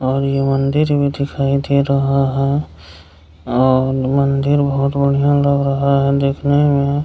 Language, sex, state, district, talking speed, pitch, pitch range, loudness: Hindi, male, Bihar, Kishanganj, 155 wpm, 140 Hz, 135-140 Hz, -16 LUFS